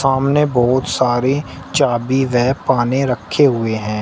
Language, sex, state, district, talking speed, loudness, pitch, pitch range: Hindi, male, Uttar Pradesh, Shamli, 135 wpm, -16 LUFS, 130 Hz, 120-135 Hz